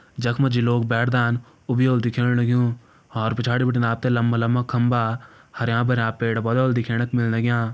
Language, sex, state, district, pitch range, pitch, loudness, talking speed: Hindi, male, Uttarakhand, Uttarkashi, 115-125 Hz, 120 Hz, -21 LUFS, 170 wpm